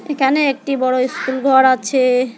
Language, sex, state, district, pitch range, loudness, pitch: Bengali, female, West Bengal, Alipurduar, 255-275 Hz, -15 LUFS, 260 Hz